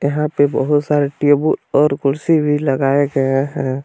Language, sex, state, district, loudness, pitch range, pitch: Hindi, male, Jharkhand, Palamu, -16 LUFS, 140-150 Hz, 145 Hz